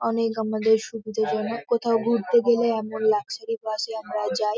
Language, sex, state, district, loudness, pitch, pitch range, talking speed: Bengali, female, West Bengal, North 24 Parganas, -24 LUFS, 225 Hz, 215-235 Hz, 185 wpm